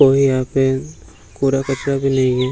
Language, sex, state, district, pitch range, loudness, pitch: Hindi, male, Bihar, Gaya, 130-135 Hz, -17 LUFS, 135 Hz